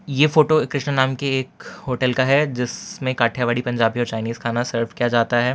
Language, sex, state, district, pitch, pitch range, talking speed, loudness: Hindi, male, Gujarat, Valsad, 125 Hz, 120-140 Hz, 205 wpm, -20 LUFS